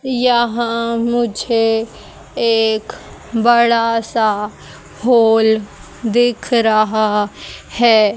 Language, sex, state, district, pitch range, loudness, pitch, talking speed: Hindi, female, Haryana, Jhajjar, 220-235 Hz, -15 LUFS, 230 Hz, 65 wpm